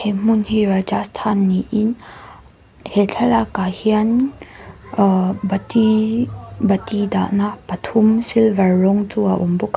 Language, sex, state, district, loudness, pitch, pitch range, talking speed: Mizo, female, Mizoram, Aizawl, -17 LUFS, 205 Hz, 195-220 Hz, 115 wpm